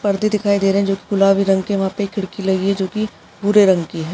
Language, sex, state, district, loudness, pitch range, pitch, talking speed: Hindi, female, Uttar Pradesh, Jyotiba Phule Nagar, -17 LUFS, 190-205 Hz, 195 Hz, 275 wpm